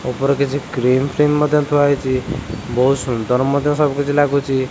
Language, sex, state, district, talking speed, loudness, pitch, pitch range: Odia, male, Odisha, Khordha, 165 wpm, -17 LUFS, 140 Hz, 130-145 Hz